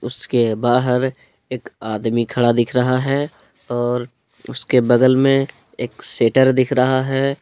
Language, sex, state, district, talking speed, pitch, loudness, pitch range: Hindi, male, Jharkhand, Palamu, 135 wpm, 125 Hz, -17 LUFS, 120-130 Hz